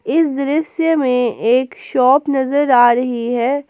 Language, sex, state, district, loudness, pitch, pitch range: Hindi, female, Jharkhand, Palamu, -15 LUFS, 265 Hz, 245-290 Hz